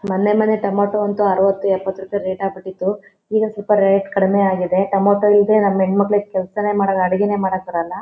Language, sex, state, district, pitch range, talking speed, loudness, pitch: Kannada, female, Karnataka, Shimoga, 190-205 Hz, 165 wpm, -17 LUFS, 195 Hz